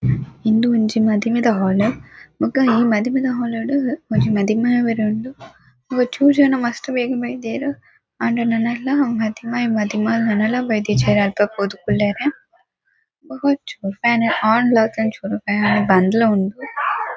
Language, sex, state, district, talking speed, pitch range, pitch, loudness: Tulu, female, Karnataka, Dakshina Kannada, 105 wpm, 215-250 Hz, 230 Hz, -18 LUFS